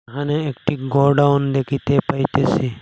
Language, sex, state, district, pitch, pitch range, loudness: Bengali, male, Assam, Hailakandi, 140 Hz, 135-145 Hz, -18 LUFS